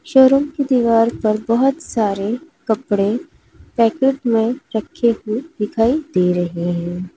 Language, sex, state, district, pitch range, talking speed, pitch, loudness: Hindi, female, Uttar Pradesh, Lalitpur, 210-270 Hz, 125 wpm, 230 Hz, -18 LUFS